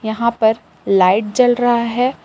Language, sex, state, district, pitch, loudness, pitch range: Hindi, female, Jharkhand, Palamu, 230 Hz, -15 LUFS, 220-245 Hz